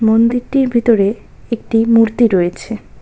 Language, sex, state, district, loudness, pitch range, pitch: Bengali, female, West Bengal, Cooch Behar, -14 LUFS, 220-235 Hz, 230 Hz